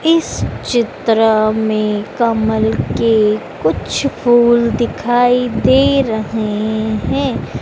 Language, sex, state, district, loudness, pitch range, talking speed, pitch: Hindi, female, Madhya Pradesh, Dhar, -15 LUFS, 220-240 Hz, 85 wpm, 225 Hz